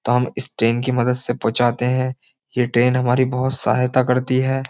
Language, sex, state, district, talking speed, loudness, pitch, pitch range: Hindi, male, Uttar Pradesh, Jyotiba Phule Nagar, 205 wpm, -19 LUFS, 125 Hz, 120-130 Hz